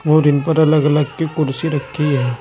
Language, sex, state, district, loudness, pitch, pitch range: Hindi, male, Uttar Pradesh, Saharanpur, -16 LUFS, 150 Hz, 140-155 Hz